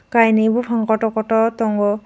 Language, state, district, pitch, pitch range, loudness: Kokborok, Tripura, Dhalai, 225 Hz, 220-230 Hz, -17 LUFS